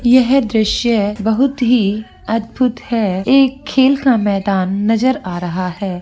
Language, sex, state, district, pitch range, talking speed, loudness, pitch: Hindi, female, Andhra Pradesh, Anantapur, 200-255 Hz, 150 wpm, -15 LUFS, 225 Hz